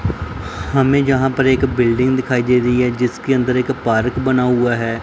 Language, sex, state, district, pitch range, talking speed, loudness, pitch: Hindi, male, Punjab, Pathankot, 120-130 Hz, 190 wpm, -16 LUFS, 125 Hz